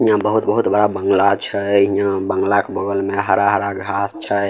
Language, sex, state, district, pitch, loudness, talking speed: Maithili, male, Bihar, Samastipur, 100 Hz, -17 LUFS, 175 wpm